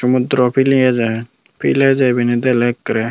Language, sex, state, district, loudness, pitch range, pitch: Chakma, female, Tripura, Unakoti, -15 LUFS, 120-130 Hz, 125 Hz